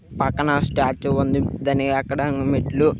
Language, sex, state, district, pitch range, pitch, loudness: Telugu, male, Andhra Pradesh, Krishna, 135-145 Hz, 140 Hz, -21 LUFS